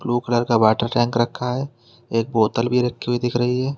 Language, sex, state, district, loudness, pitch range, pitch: Hindi, male, Uttar Pradesh, Lalitpur, -20 LUFS, 115-125 Hz, 120 Hz